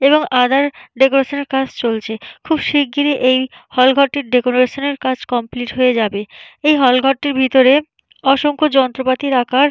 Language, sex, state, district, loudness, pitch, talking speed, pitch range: Bengali, female, West Bengal, Jalpaiguri, -15 LUFS, 265 Hz, 150 wpm, 250-280 Hz